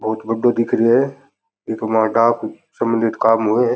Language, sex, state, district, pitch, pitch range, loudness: Rajasthani, male, Rajasthan, Churu, 115 Hz, 110-120 Hz, -17 LUFS